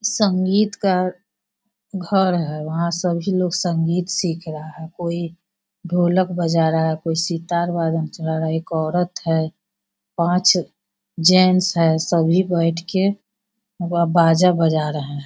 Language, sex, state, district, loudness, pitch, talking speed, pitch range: Hindi, female, Bihar, Sitamarhi, -19 LUFS, 170 Hz, 135 wpm, 160-185 Hz